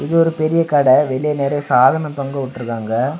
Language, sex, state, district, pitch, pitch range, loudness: Tamil, male, Tamil Nadu, Kanyakumari, 145 Hz, 130-155 Hz, -16 LUFS